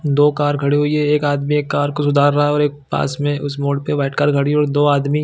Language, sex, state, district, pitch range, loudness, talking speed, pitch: Hindi, male, Chhattisgarh, Bilaspur, 145-150 Hz, -17 LUFS, 265 wpm, 145 Hz